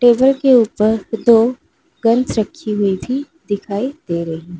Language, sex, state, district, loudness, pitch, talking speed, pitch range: Hindi, female, Uttar Pradesh, Lalitpur, -16 LUFS, 225 Hz, 145 wpm, 205-255 Hz